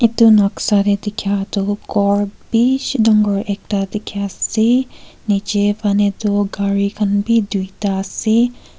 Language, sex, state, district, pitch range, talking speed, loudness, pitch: Nagamese, female, Nagaland, Kohima, 200-220 Hz, 130 wpm, -17 LUFS, 205 Hz